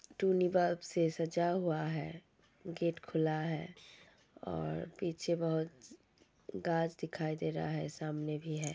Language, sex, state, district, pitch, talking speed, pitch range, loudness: Hindi, female, Uttar Pradesh, Ghazipur, 165 Hz, 115 wpm, 155-170 Hz, -36 LUFS